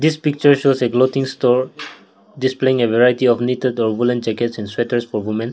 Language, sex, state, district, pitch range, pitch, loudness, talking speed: English, male, Nagaland, Kohima, 120-130 Hz, 125 Hz, -17 LUFS, 195 wpm